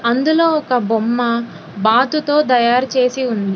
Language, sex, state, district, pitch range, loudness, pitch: Telugu, female, Telangana, Hyderabad, 230-265 Hz, -15 LUFS, 245 Hz